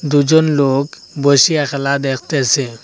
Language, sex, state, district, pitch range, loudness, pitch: Bengali, male, Assam, Hailakandi, 135-145 Hz, -14 LUFS, 140 Hz